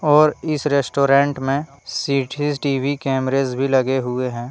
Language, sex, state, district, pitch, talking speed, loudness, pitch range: Hindi, male, Jharkhand, Deoghar, 140 Hz, 135 wpm, -19 LUFS, 130-145 Hz